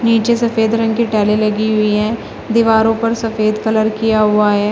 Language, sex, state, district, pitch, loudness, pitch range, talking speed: Hindi, female, Uttar Pradesh, Shamli, 220 Hz, -14 LUFS, 215-225 Hz, 190 wpm